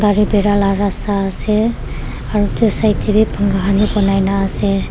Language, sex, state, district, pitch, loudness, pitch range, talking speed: Nagamese, female, Nagaland, Kohima, 205 Hz, -15 LUFS, 195-210 Hz, 170 wpm